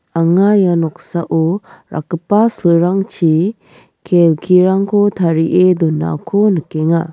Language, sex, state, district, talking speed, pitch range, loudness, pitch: Garo, female, Meghalaya, West Garo Hills, 75 wpm, 165-195 Hz, -14 LUFS, 175 Hz